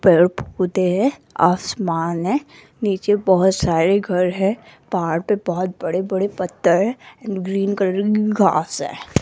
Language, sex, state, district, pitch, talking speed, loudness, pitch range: Hindi, female, Rajasthan, Jaipur, 190 Hz, 145 wpm, -19 LUFS, 180-205 Hz